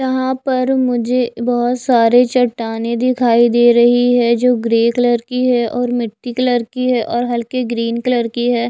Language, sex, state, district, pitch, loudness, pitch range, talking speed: Hindi, female, Chhattisgarh, Raipur, 245 Hz, -15 LUFS, 235-250 Hz, 180 wpm